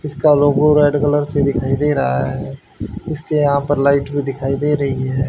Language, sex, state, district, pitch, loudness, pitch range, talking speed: Hindi, male, Haryana, Rohtak, 140 Hz, -16 LUFS, 135-145 Hz, 205 wpm